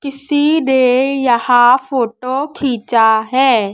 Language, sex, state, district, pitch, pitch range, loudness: Hindi, male, Madhya Pradesh, Dhar, 255 Hz, 240-275 Hz, -13 LUFS